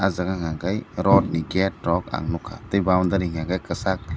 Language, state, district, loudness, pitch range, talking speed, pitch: Kokborok, Tripura, Dhalai, -23 LUFS, 85-95 Hz, 200 wpm, 90 Hz